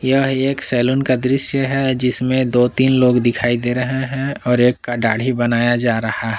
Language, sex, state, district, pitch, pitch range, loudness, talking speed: Hindi, male, Jharkhand, Palamu, 125 Hz, 120-130 Hz, -16 LUFS, 205 wpm